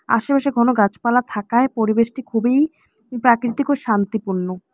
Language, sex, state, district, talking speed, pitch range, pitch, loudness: Bengali, female, West Bengal, Alipurduar, 125 wpm, 220-255 Hz, 235 Hz, -19 LUFS